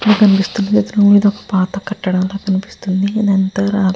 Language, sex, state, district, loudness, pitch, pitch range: Telugu, female, Andhra Pradesh, Guntur, -15 LUFS, 200 Hz, 190-205 Hz